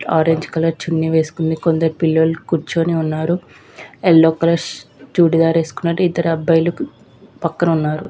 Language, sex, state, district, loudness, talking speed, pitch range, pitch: Telugu, female, Andhra Pradesh, Visakhapatnam, -17 LUFS, 125 wpm, 160-170 Hz, 165 Hz